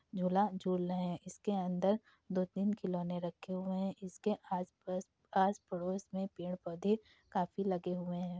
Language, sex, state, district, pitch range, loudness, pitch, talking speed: Hindi, female, Uttar Pradesh, Gorakhpur, 180-195 Hz, -38 LUFS, 185 Hz, 165 wpm